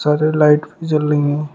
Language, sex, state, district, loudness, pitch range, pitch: Hindi, male, Uttar Pradesh, Shamli, -16 LUFS, 150-155 Hz, 150 Hz